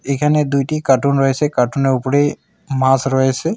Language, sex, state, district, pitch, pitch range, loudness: Bengali, male, West Bengal, Alipurduar, 140 Hz, 135-150 Hz, -16 LUFS